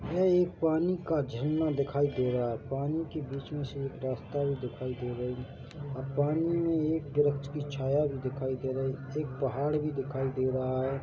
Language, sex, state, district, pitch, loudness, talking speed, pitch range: Hindi, male, Chhattisgarh, Bilaspur, 140 Hz, -31 LUFS, 210 wpm, 130-150 Hz